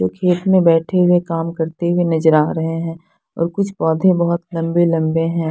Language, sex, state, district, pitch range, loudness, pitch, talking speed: Hindi, female, Punjab, Fazilka, 165-175 Hz, -17 LUFS, 165 Hz, 205 wpm